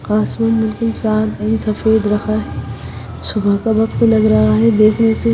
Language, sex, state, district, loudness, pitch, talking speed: Hindi, female, Odisha, Sambalpur, -15 LUFS, 215 Hz, 170 wpm